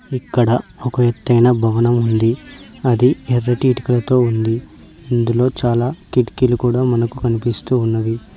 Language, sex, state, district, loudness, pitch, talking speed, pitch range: Telugu, male, Telangana, Mahabubabad, -17 LUFS, 120 Hz, 115 wpm, 115-125 Hz